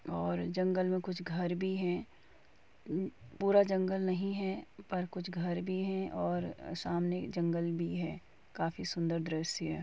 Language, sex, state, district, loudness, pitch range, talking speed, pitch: Hindi, female, Uttar Pradesh, Muzaffarnagar, -35 LUFS, 165-185 Hz, 145 wpm, 175 Hz